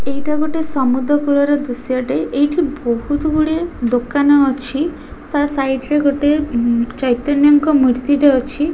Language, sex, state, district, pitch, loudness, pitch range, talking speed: Odia, female, Odisha, Khordha, 285 Hz, -16 LUFS, 260-295 Hz, 150 wpm